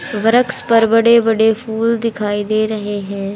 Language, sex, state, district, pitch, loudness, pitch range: Hindi, female, Haryana, Charkhi Dadri, 220 Hz, -15 LUFS, 210-230 Hz